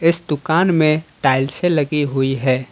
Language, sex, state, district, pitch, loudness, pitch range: Hindi, male, Jharkhand, Ranchi, 150 Hz, -17 LUFS, 135-160 Hz